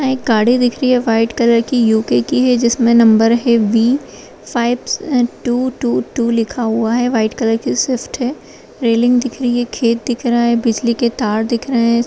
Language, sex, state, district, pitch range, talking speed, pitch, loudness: Kumaoni, female, Uttarakhand, Uttarkashi, 230-250 Hz, 210 wpm, 235 Hz, -15 LUFS